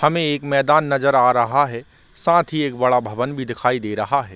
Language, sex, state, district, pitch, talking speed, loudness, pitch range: Hindi, male, Chhattisgarh, Korba, 135 Hz, 235 wpm, -18 LUFS, 125-145 Hz